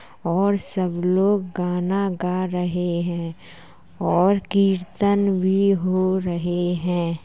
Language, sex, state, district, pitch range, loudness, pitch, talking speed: Hindi, female, Uttar Pradesh, Jalaun, 175-195 Hz, -22 LUFS, 180 Hz, 105 wpm